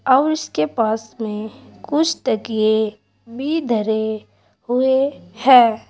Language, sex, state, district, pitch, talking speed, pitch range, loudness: Hindi, female, Uttar Pradesh, Saharanpur, 230 Hz, 100 wpm, 220-265 Hz, -18 LUFS